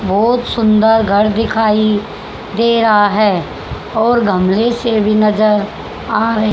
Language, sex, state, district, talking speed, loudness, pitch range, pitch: Hindi, female, Haryana, Charkhi Dadri, 130 wpm, -13 LUFS, 210-225 Hz, 215 Hz